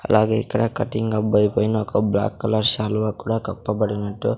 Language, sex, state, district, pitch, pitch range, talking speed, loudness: Telugu, male, Andhra Pradesh, Sri Satya Sai, 110 Hz, 105-110 Hz, 150 wpm, -21 LUFS